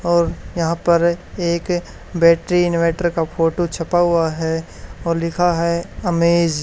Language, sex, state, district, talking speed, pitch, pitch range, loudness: Hindi, male, Haryana, Charkhi Dadri, 145 wpm, 170 Hz, 165-175 Hz, -18 LUFS